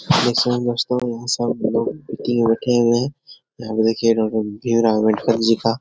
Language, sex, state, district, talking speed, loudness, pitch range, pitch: Hindi, male, Bihar, Jahanabad, 125 wpm, -19 LUFS, 115-120 Hz, 115 Hz